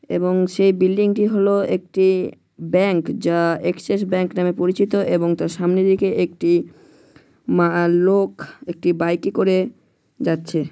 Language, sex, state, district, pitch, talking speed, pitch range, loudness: Bengali, male, West Bengal, Malda, 180 Hz, 135 wpm, 175-190 Hz, -19 LUFS